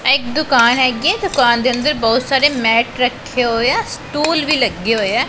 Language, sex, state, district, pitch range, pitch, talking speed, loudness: Punjabi, female, Punjab, Pathankot, 235-295 Hz, 255 Hz, 180 wpm, -15 LUFS